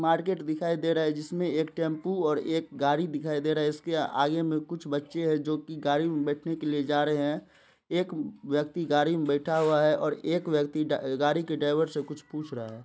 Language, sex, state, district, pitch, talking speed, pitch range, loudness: Hindi, male, Bihar, Supaul, 155 Hz, 250 wpm, 145-165 Hz, -28 LUFS